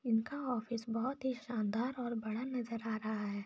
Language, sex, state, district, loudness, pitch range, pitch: Hindi, female, Jharkhand, Sahebganj, -38 LUFS, 220-250 Hz, 230 Hz